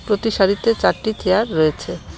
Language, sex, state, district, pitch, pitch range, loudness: Bengali, female, West Bengal, Cooch Behar, 205 Hz, 190-220 Hz, -18 LUFS